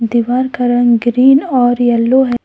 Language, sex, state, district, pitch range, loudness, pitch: Hindi, female, Jharkhand, Deoghar, 240-255 Hz, -12 LUFS, 245 Hz